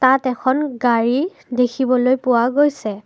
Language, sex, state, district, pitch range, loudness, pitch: Assamese, female, Assam, Kamrup Metropolitan, 240-265 Hz, -18 LUFS, 255 Hz